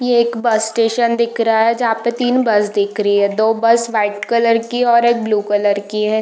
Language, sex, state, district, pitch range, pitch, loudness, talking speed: Hindi, female, Bihar, East Champaran, 210-235 Hz, 230 Hz, -15 LUFS, 250 wpm